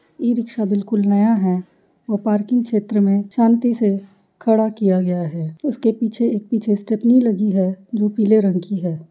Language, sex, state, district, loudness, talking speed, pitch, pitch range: Hindi, female, Uttar Pradesh, Jyotiba Phule Nagar, -18 LUFS, 180 wpm, 210 Hz, 195-230 Hz